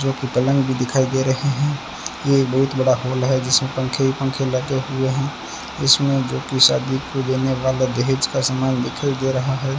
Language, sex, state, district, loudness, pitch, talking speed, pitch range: Hindi, male, Rajasthan, Bikaner, -19 LUFS, 130 Hz, 210 wpm, 130-135 Hz